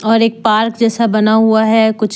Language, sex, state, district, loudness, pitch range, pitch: Hindi, female, Jharkhand, Deoghar, -12 LUFS, 215-225 Hz, 220 Hz